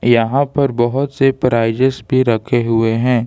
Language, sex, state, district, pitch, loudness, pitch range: Hindi, male, Jharkhand, Ranchi, 125 Hz, -15 LUFS, 115-135 Hz